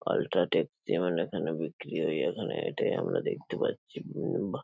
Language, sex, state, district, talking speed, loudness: Bengali, male, West Bengal, Paschim Medinipur, 140 wpm, -31 LUFS